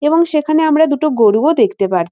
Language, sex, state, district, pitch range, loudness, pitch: Bengali, female, West Bengal, North 24 Parganas, 215-315 Hz, -13 LUFS, 300 Hz